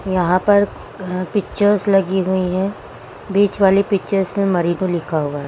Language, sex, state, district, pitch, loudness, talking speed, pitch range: Hindi, female, Uttar Pradesh, Lucknow, 190 Hz, -18 LUFS, 155 wpm, 180-200 Hz